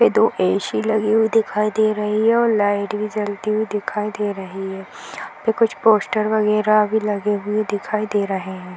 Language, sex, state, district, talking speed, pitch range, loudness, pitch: Hindi, female, Bihar, Jahanabad, 205 wpm, 205-215 Hz, -19 LUFS, 210 Hz